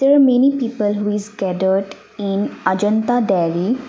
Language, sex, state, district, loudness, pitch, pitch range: English, female, Assam, Kamrup Metropolitan, -18 LUFS, 210 Hz, 195-245 Hz